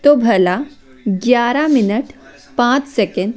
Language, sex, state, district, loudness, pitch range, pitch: Hindi, female, Chandigarh, Chandigarh, -15 LUFS, 200-275 Hz, 240 Hz